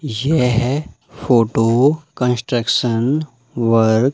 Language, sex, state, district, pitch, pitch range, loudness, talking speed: Hindi, male, Madhya Pradesh, Umaria, 125 Hz, 115-140 Hz, -17 LUFS, 85 wpm